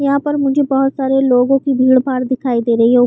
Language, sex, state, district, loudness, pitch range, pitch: Hindi, female, Chhattisgarh, Bilaspur, -14 LUFS, 250-275 Hz, 265 Hz